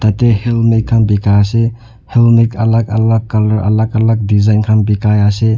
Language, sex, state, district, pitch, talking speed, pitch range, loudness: Nagamese, male, Nagaland, Dimapur, 110 Hz, 160 wpm, 105-115 Hz, -12 LUFS